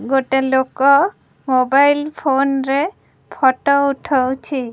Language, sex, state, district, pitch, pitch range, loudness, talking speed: Odia, female, Odisha, Khordha, 270 Hz, 265-280 Hz, -16 LUFS, 90 wpm